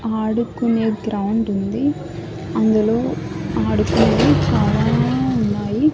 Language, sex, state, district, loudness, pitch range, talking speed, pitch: Telugu, male, Andhra Pradesh, Annamaya, -18 LUFS, 180-230 Hz, 70 wpm, 220 Hz